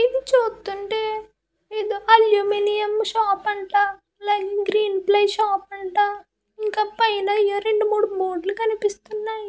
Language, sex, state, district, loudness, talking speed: Telugu, female, Andhra Pradesh, Krishna, -21 LUFS, 115 wpm